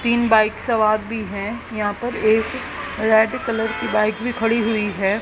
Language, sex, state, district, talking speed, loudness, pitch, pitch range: Hindi, female, Haryana, Jhajjar, 185 wpm, -20 LUFS, 220 Hz, 215-230 Hz